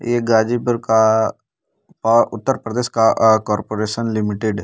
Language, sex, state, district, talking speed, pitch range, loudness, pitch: Hindi, male, Uttar Pradesh, Ghazipur, 130 wpm, 110-120 Hz, -17 LUFS, 110 Hz